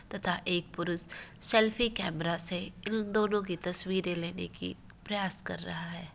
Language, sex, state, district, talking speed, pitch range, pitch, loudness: Hindi, female, Uttar Pradesh, Varanasi, 155 wpm, 170-205 Hz, 180 Hz, -31 LUFS